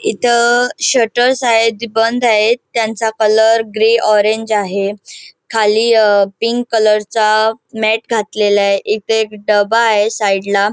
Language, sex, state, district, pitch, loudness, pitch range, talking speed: Marathi, female, Goa, North and South Goa, 220 Hz, -13 LUFS, 210-230 Hz, 135 wpm